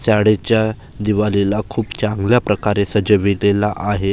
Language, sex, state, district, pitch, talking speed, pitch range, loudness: Marathi, male, Maharashtra, Gondia, 105 Hz, 100 wpm, 100-110 Hz, -17 LUFS